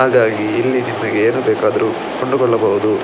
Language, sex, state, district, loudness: Kannada, male, Karnataka, Dakshina Kannada, -16 LUFS